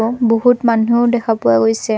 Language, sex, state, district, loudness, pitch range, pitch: Assamese, female, Assam, Kamrup Metropolitan, -14 LUFS, 220-240 Hz, 230 Hz